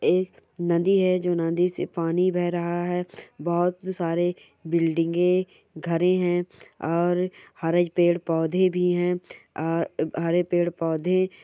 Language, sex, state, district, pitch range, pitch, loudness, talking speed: Hindi, female, Bihar, Bhagalpur, 165-180 Hz, 175 Hz, -24 LUFS, 120 wpm